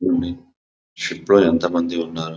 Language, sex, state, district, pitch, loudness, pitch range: Telugu, male, Andhra Pradesh, Visakhapatnam, 85 Hz, -19 LUFS, 85-100 Hz